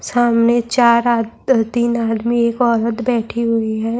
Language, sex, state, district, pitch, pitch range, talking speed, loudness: Urdu, female, Bihar, Saharsa, 235 Hz, 230-240 Hz, 150 wpm, -16 LUFS